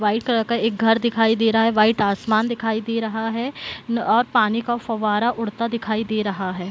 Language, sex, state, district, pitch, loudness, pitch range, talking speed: Hindi, female, Uttar Pradesh, Hamirpur, 225 Hz, -21 LUFS, 215-235 Hz, 215 wpm